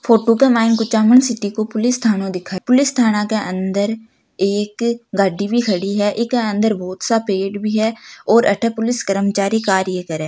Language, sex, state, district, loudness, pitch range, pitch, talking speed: Marwari, female, Rajasthan, Nagaur, -17 LUFS, 195-230 Hz, 215 Hz, 180 wpm